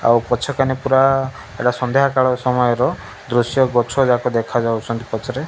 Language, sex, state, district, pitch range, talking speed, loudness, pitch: Odia, male, Odisha, Malkangiri, 115-130 Hz, 155 wpm, -18 LUFS, 125 Hz